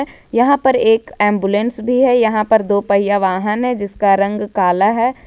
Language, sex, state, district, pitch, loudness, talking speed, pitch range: Hindi, female, Jharkhand, Ranchi, 210 Hz, -15 LUFS, 180 wpm, 200-240 Hz